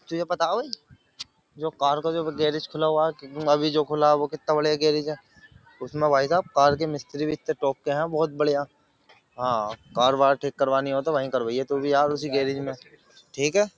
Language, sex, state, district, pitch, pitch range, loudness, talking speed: Hindi, male, Uttar Pradesh, Jyotiba Phule Nagar, 150 Hz, 140-155 Hz, -24 LUFS, 220 wpm